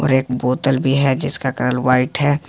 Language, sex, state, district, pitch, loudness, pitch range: Hindi, male, Jharkhand, Ranchi, 130 Hz, -17 LUFS, 125-140 Hz